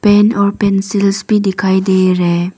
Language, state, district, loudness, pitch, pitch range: Hindi, Arunachal Pradesh, Papum Pare, -13 LUFS, 195 Hz, 185-205 Hz